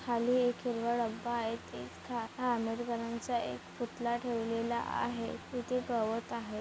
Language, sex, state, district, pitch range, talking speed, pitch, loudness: Marathi, female, Maharashtra, Chandrapur, 230-245 Hz, 135 wpm, 235 Hz, -35 LUFS